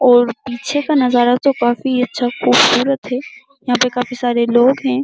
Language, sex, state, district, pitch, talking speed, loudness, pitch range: Hindi, female, Uttar Pradesh, Jyotiba Phule Nagar, 250 Hz, 180 wpm, -15 LUFS, 245-270 Hz